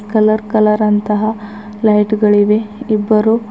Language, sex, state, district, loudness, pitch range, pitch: Kannada, female, Karnataka, Bidar, -13 LUFS, 210-215 Hz, 215 Hz